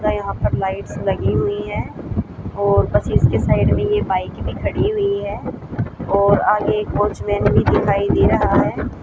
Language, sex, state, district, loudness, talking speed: Hindi, female, Haryana, Charkhi Dadri, -18 LUFS, 180 wpm